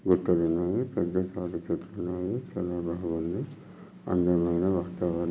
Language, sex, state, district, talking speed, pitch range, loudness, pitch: Telugu, male, Telangana, Nalgonda, 80 wpm, 85-95 Hz, -29 LUFS, 90 Hz